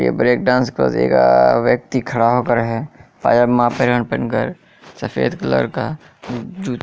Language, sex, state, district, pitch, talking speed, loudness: Hindi, male, Bihar, Kishanganj, 120 Hz, 140 wpm, -17 LUFS